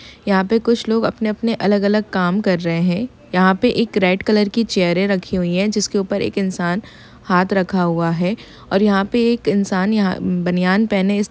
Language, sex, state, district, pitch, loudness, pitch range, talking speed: Hindi, female, Jharkhand, Sahebganj, 195 Hz, -18 LUFS, 185-215 Hz, 200 wpm